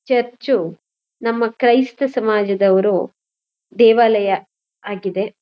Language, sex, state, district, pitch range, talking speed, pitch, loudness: Kannada, female, Karnataka, Mysore, 200-240 Hz, 65 wpm, 225 Hz, -17 LUFS